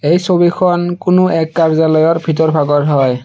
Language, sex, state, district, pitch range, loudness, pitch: Assamese, male, Assam, Sonitpur, 155-175 Hz, -12 LUFS, 165 Hz